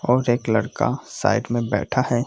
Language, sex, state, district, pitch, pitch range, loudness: Hindi, male, Bihar, Jamui, 120 Hz, 115-120 Hz, -22 LUFS